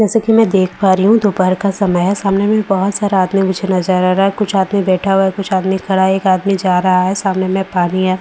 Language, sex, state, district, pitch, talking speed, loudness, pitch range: Hindi, female, Bihar, Katihar, 190 Hz, 285 wpm, -14 LUFS, 185-200 Hz